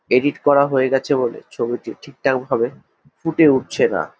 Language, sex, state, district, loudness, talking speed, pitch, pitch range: Bengali, male, West Bengal, Jhargram, -19 LUFS, 155 wpm, 135 Hz, 125-145 Hz